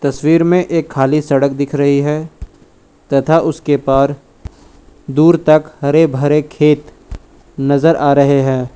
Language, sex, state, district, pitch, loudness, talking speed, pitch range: Hindi, male, Uttar Pradesh, Lucknow, 145 Hz, -13 LUFS, 135 wpm, 140-155 Hz